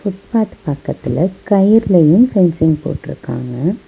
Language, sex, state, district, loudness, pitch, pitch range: Tamil, female, Tamil Nadu, Nilgiris, -15 LUFS, 180 Hz, 150-200 Hz